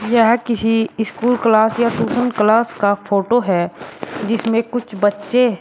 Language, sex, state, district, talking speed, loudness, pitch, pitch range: Hindi, male, Uttar Pradesh, Shamli, 140 wpm, -17 LUFS, 225 Hz, 210-235 Hz